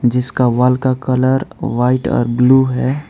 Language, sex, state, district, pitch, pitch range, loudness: Hindi, male, West Bengal, Alipurduar, 125 Hz, 125-130 Hz, -15 LUFS